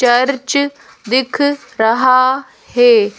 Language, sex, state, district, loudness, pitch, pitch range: Hindi, female, Madhya Pradesh, Bhopal, -14 LUFS, 255 Hz, 240-275 Hz